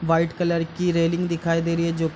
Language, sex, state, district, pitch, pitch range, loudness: Hindi, male, Bihar, Gopalganj, 170 Hz, 165-170 Hz, -23 LUFS